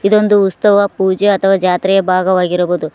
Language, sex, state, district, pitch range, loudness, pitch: Kannada, female, Karnataka, Koppal, 180-200 Hz, -12 LUFS, 190 Hz